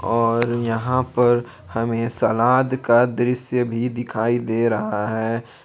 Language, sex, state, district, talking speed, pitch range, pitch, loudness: Hindi, male, Jharkhand, Palamu, 125 wpm, 115-125 Hz, 120 Hz, -20 LUFS